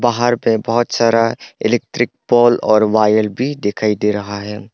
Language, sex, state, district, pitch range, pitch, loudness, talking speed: Hindi, male, Arunachal Pradesh, Longding, 105-120 Hz, 115 Hz, -16 LUFS, 165 wpm